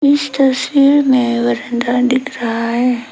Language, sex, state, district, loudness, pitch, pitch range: Hindi, female, Arunachal Pradesh, Lower Dibang Valley, -14 LUFS, 250 Hz, 235-275 Hz